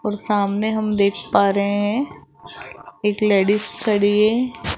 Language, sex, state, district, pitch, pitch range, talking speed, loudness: Hindi, female, Rajasthan, Jaipur, 210 Hz, 205-215 Hz, 140 wpm, -19 LUFS